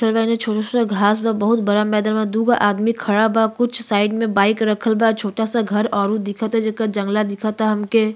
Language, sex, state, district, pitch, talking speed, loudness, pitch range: Bhojpuri, female, Uttar Pradesh, Gorakhpur, 220 Hz, 200 wpm, -18 LUFS, 210-225 Hz